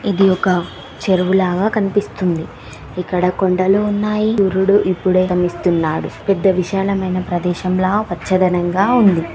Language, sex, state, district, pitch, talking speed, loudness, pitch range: Telugu, female, Andhra Pradesh, Srikakulam, 185 Hz, 95 wpm, -16 LUFS, 180-195 Hz